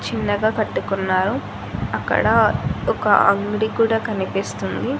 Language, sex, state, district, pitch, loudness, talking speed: Telugu, female, Andhra Pradesh, Annamaya, 195 Hz, -20 LUFS, 85 wpm